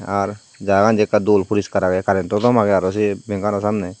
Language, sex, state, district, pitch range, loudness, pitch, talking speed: Chakma, male, Tripura, Dhalai, 100-105 Hz, -18 LUFS, 100 Hz, 255 wpm